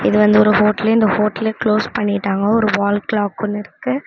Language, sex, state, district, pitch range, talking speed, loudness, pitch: Tamil, female, Tamil Nadu, Namakkal, 205-215 Hz, 190 wpm, -16 LUFS, 210 Hz